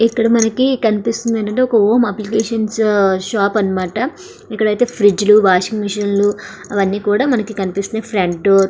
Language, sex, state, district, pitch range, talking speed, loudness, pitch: Telugu, female, Andhra Pradesh, Srikakulam, 200-230 Hz, 160 wpm, -15 LUFS, 210 Hz